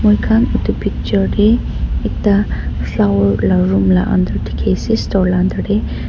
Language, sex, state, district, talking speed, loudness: Nagamese, female, Nagaland, Dimapur, 165 wpm, -15 LUFS